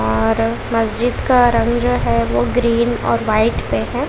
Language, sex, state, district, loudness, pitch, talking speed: Hindi, female, Bihar, West Champaran, -16 LUFS, 225 Hz, 175 wpm